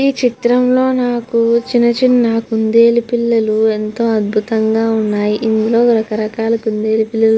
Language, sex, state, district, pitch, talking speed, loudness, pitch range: Telugu, female, Andhra Pradesh, Guntur, 230 Hz, 115 wpm, -14 LUFS, 220-240 Hz